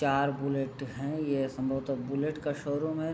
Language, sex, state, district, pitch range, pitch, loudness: Hindi, male, Bihar, Saharsa, 135-150 Hz, 140 Hz, -32 LUFS